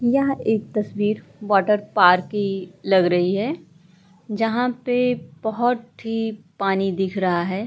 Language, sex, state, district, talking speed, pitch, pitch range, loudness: Hindi, female, Uttar Pradesh, Budaun, 135 wpm, 205 Hz, 185-225 Hz, -21 LUFS